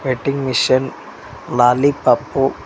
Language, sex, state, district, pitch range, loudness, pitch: Kannada, male, Karnataka, Koppal, 125-140 Hz, -16 LUFS, 135 Hz